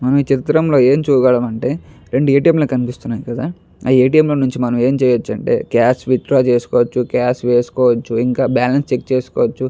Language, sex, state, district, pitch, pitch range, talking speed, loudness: Telugu, male, Andhra Pradesh, Chittoor, 130 Hz, 120-135 Hz, 210 wpm, -15 LUFS